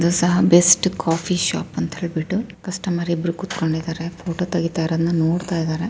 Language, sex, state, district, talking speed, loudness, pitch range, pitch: Kannada, female, Karnataka, Chamarajanagar, 110 wpm, -20 LUFS, 165-180 Hz, 170 Hz